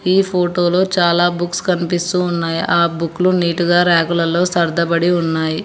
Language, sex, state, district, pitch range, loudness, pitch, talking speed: Telugu, male, Telangana, Hyderabad, 170-180 Hz, -16 LUFS, 175 Hz, 160 wpm